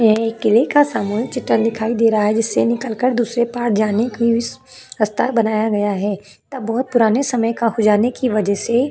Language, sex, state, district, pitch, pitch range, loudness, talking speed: Hindi, female, Chhattisgarh, Korba, 230 Hz, 215-240 Hz, -17 LUFS, 210 wpm